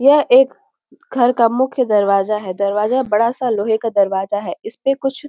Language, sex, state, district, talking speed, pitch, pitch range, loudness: Hindi, female, Uttar Pradesh, Ghazipur, 205 wpm, 230 Hz, 205-265 Hz, -16 LUFS